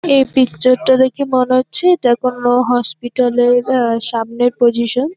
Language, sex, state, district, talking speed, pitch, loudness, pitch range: Bengali, female, West Bengal, North 24 Parganas, 165 wpm, 250 Hz, -14 LUFS, 240-260 Hz